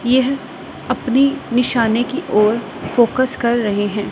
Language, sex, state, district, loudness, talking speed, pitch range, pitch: Hindi, female, Punjab, Pathankot, -17 LUFS, 130 wpm, 225-260 Hz, 240 Hz